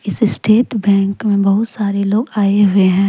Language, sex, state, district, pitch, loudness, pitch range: Hindi, female, Jharkhand, Deoghar, 200 Hz, -14 LUFS, 195-215 Hz